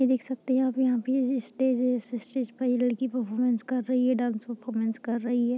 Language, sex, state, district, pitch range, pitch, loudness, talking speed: Hindi, female, Bihar, Muzaffarpur, 240-260 Hz, 250 Hz, -28 LUFS, 280 wpm